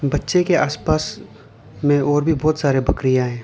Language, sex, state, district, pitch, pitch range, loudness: Hindi, male, Arunachal Pradesh, Lower Dibang Valley, 145 Hz, 135-155 Hz, -19 LUFS